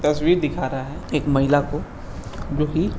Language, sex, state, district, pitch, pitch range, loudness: Hindi, male, Uttar Pradesh, Budaun, 145 Hz, 135-150 Hz, -22 LUFS